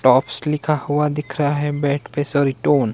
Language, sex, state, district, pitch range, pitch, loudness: Hindi, male, Himachal Pradesh, Shimla, 135-150 Hz, 145 Hz, -20 LUFS